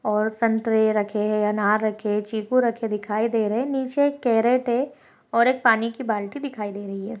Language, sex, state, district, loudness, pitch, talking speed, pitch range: Hindi, female, Bihar, Saharsa, -23 LUFS, 225 Hz, 215 wpm, 210-245 Hz